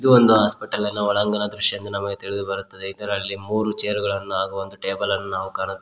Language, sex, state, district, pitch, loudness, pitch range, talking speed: Kannada, male, Karnataka, Koppal, 100 Hz, -21 LUFS, 100-105 Hz, 205 wpm